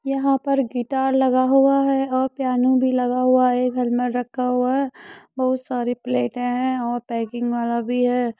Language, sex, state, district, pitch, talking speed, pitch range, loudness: Hindi, female, Uttar Pradesh, Muzaffarnagar, 250 Hz, 180 wpm, 245-265 Hz, -21 LUFS